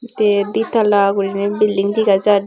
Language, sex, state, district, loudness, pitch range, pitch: Chakma, female, Tripura, Unakoti, -16 LUFS, 200-210 Hz, 205 Hz